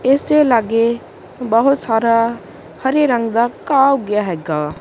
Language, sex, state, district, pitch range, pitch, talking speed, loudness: Punjabi, female, Punjab, Kapurthala, 225-270 Hz, 235 Hz, 135 wpm, -16 LUFS